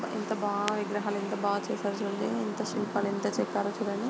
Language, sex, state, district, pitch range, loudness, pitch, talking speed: Telugu, female, Andhra Pradesh, Guntur, 200-210 Hz, -31 LUFS, 205 Hz, 175 wpm